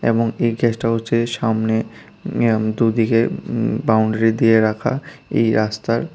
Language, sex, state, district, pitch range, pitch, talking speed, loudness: Bengali, female, Tripura, West Tripura, 110-115 Hz, 115 Hz, 125 wpm, -18 LUFS